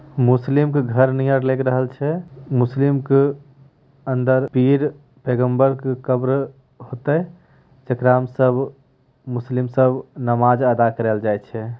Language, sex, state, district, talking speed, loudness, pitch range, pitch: Hindi, male, Bihar, Begusarai, 105 wpm, -19 LUFS, 125-140 Hz, 130 Hz